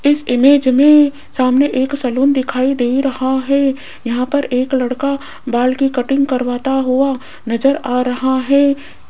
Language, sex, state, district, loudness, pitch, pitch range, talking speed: Hindi, female, Rajasthan, Jaipur, -15 LUFS, 265 Hz, 255-280 Hz, 150 wpm